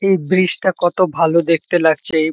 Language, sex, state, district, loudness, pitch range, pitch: Bengali, male, West Bengal, Kolkata, -15 LUFS, 160-185 Hz, 170 Hz